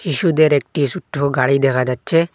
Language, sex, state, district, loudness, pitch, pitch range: Bengali, male, Assam, Hailakandi, -17 LUFS, 145 Hz, 135-165 Hz